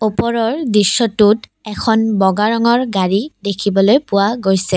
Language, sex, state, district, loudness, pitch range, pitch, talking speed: Assamese, female, Assam, Kamrup Metropolitan, -15 LUFS, 200-230 Hz, 210 Hz, 115 wpm